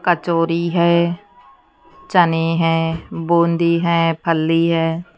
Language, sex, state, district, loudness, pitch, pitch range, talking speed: Hindi, female, Haryana, Charkhi Dadri, -17 LUFS, 170 Hz, 165-170 Hz, 90 wpm